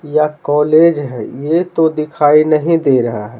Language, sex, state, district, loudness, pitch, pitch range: Hindi, male, Bihar, Patna, -13 LUFS, 150 Hz, 145-160 Hz